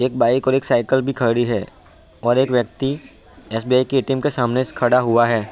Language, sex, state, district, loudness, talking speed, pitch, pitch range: Hindi, male, Bihar, Bhagalpur, -19 LUFS, 205 wpm, 125 Hz, 115-130 Hz